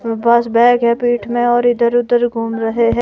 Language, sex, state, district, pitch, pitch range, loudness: Hindi, female, Himachal Pradesh, Shimla, 235 Hz, 230-240 Hz, -14 LUFS